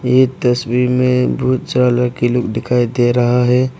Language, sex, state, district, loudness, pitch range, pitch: Hindi, male, Arunachal Pradesh, Papum Pare, -15 LUFS, 120-125 Hz, 125 Hz